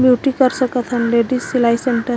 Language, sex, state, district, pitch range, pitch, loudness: Chhattisgarhi, female, Chhattisgarh, Korba, 240-255 Hz, 250 Hz, -16 LUFS